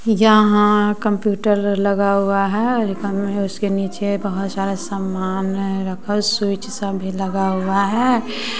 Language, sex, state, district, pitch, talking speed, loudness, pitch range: Hindi, female, Bihar, West Champaran, 200 Hz, 125 wpm, -19 LUFS, 195-210 Hz